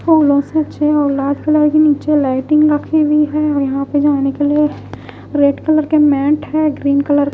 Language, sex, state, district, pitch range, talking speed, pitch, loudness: Hindi, female, Bihar, West Champaran, 285-305 Hz, 205 wpm, 295 Hz, -14 LUFS